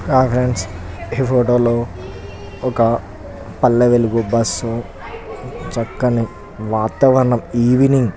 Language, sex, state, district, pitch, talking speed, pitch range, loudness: Telugu, male, Telangana, Nalgonda, 115 Hz, 95 wpm, 100-125 Hz, -17 LUFS